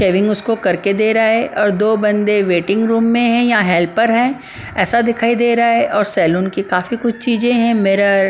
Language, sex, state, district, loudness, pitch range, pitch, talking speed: Hindi, female, Punjab, Pathankot, -14 LUFS, 195-235 Hz, 220 Hz, 225 wpm